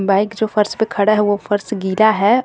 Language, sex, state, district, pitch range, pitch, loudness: Hindi, female, Jharkhand, Garhwa, 200-220 Hz, 210 Hz, -16 LUFS